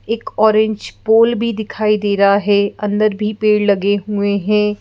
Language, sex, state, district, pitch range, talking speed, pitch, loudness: Hindi, female, Madhya Pradesh, Bhopal, 205-215 Hz, 175 wpm, 210 Hz, -15 LUFS